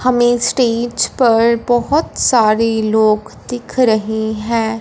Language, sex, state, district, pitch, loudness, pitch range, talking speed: Hindi, female, Punjab, Fazilka, 230 Hz, -14 LUFS, 220-245 Hz, 110 wpm